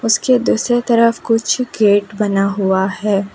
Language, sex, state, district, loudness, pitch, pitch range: Hindi, female, Gujarat, Valsad, -15 LUFS, 215 Hz, 200-235 Hz